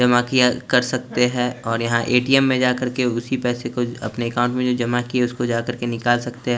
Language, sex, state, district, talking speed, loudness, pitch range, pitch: Hindi, male, Chandigarh, Chandigarh, 245 wpm, -20 LUFS, 120-125 Hz, 120 Hz